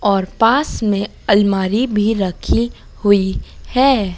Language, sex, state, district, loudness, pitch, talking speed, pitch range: Hindi, female, Madhya Pradesh, Dhar, -16 LUFS, 205 Hz, 115 wpm, 195-230 Hz